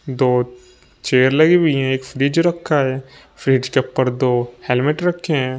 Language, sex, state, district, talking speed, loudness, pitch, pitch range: Hindi, male, Uttar Pradesh, Shamli, 170 wpm, -17 LUFS, 130 Hz, 130-150 Hz